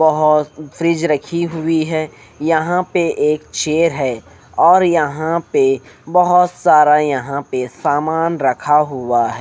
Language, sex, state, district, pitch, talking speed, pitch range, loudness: Hindi, male, Haryana, Rohtak, 155 Hz, 135 wpm, 140-170 Hz, -16 LUFS